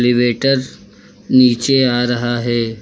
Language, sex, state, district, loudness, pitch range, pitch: Hindi, male, Uttar Pradesh, Lucknow, -15 LUFS, 115-130 Hz, 120 Hz